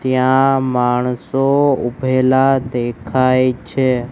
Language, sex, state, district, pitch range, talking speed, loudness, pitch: Gujarati, male, Gujarat, Gandhinagar, 125-135 Hz, 75 wpm, -16 LUFS, 130 Hz